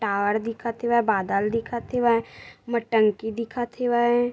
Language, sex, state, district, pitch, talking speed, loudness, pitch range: Chhattisgarhi, female, Chhattisgarh, Bilaspur, 230 Hz, 140 wpm, -24 LUFS, 220-240 Hz